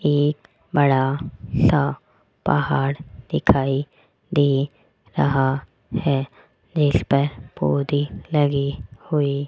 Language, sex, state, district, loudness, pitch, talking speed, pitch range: Hindi, female, Rajasthan, Jaipur, -22 LUFS, 140 Hz, 75 wpm, 135-145 Hz